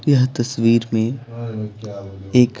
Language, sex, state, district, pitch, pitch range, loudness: Hindi, male, Bihar, Patna, 115 Hz, 110-125 Hz, -19 LUFS